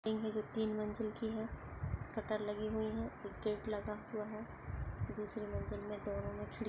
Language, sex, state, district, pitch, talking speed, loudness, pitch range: Hindi, female, Uttar Pradesh, Jyotiba Phule Nagar, 215 Hz, 200 wpm, -42 LUFS, 210-220 Hz